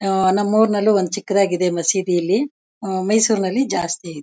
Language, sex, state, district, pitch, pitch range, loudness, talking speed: Kannada, female, Karnataka, Mysore, 195 Hz, 180-210 Hz, -18 LUFS, 140 wpm